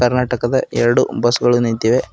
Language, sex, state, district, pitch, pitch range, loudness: Kannada, male, Karnataka, Bidar, 120 Hz, 120-125 Hz, -16 LUFS